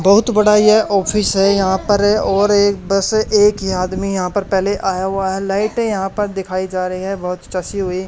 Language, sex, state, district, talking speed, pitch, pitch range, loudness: Hindi, male, Haryana, Charkhi Dadri, 215 wpm, 195 Hz, 190-205 Hz, -16 LUFS